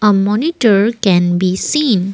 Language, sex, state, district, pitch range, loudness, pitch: English, female, Assam, Kamrup Metropolitan, 185-230 Hz, -13 LUFS, 205 Hz